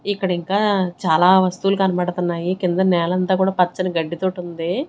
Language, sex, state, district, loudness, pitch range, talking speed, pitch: Telugu, female, Andhra Pradesh, Sri Satya Sai, -19 LUFS, 175-190 Hz, 135 wpm, 185 Hz